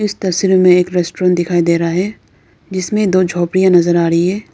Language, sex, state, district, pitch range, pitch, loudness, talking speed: Hindi, female, Arunachal Pradesh, Lower Dibang Valley, 170-185 Hz, 180 Hz, -13 LUFS, 210 wpm